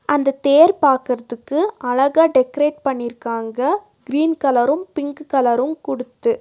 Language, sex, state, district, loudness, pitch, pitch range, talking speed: Tamil, female, Tamil Nadu, Nilgiris, -18 LUFS, 275 Hz, 250-305 Hz, 105 wpm